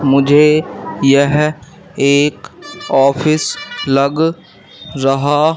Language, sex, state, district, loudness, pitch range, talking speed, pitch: Hindi, male, Madhya Pradesh, Katni, -13 LUFS, 140-155 Hz, 65 wpm, 145 Hz